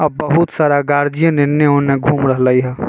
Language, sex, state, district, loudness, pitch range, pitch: Bajjika, male, Bihar, Vaishali, -14 LUFS, 140-150 Hz, 145 Hz